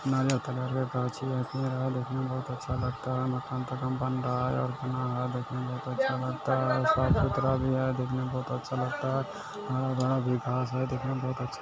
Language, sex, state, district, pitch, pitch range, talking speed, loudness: Hindi, male, Bihar, Kishanganj, 130 Hz, 125-130 Hz, 145 wpm, -30 LUFS